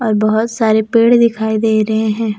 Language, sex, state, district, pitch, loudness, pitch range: Hindi, female, Jharkhand, Deoghar, 220 Hz, -13 LUFS, 215-230 Hz